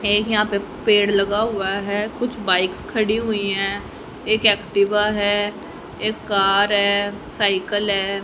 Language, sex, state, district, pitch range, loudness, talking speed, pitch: Hindi, female, Haryana, Charkhi Dadri, 200-210 Hz, -19 LUFS, 145 wpm, 205 Hz